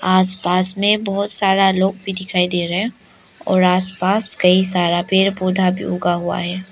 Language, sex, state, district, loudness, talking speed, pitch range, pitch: Hindi, female, Arunachal Pradesh, Lower Dibang Valley, -17 LUFS, 180 wpm, 180-195 Hz, 185 Hz